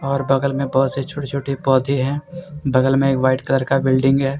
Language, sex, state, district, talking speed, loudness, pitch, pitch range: Hindi, male, Jharkhand, Deoghar, 220 wpm, -19 LUFS, 135 Hz, 135-140 Hz